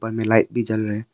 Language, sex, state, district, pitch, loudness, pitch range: Hindi, male, Arunachal Pradesh, Longding, 110 Hz, -21 LUFS, 110-115 Hz